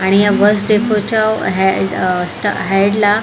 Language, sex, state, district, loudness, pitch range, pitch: Marathi, female, Maharashtra, Mumbai Suburban, -14 LUFS, 190-210 Hz, 205 Hz